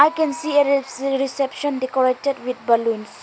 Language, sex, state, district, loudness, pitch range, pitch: English, female, Arunachal Pradesh, Lower Dibang Valley, -20 LUFS, 255-290 Hz, 270 Hz